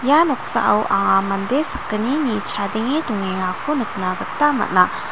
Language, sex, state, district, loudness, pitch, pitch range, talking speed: Garo, female, Meghalaya, North Garo Hills, -19 LUFS, 220 Hz, 195-290 Hz, 115 wpm